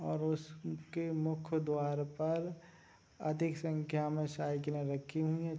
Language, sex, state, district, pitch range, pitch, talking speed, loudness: Hindi, male, Bihar, Sitamarhi, 150-160 Hz, 155 Hz, 130 wpm, -38 LUFS